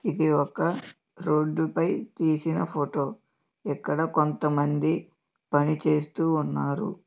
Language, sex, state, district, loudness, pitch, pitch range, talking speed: Telugu, male, Andhra Pradesh, Visakhapatnam, -27 LUFS, 155 Hz, 150-160 Hz, 100 wpm